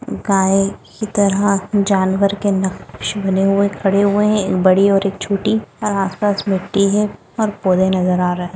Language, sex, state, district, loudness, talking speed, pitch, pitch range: Hindi, female, Goa, North and South Goa, -16 LUFS, 195 wpm, 200 Hz, 190-205 Hz